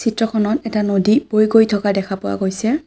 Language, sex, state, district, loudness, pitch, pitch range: Assamese, female, Assam, Kamrup Metropolitan, -17 LUFS, 215 Hz, 200-225 Hz